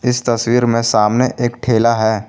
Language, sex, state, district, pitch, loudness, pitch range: Hindi, male, Jharkhand, Garhwa, 115 Hz, -15 LUFS, 115-120 Hz